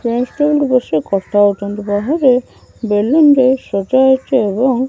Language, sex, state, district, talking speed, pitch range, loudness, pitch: Odia, female, Odisha, Malkangiri, 145 wpm, 205-265 Hz, -14 LUFS, 250 Hz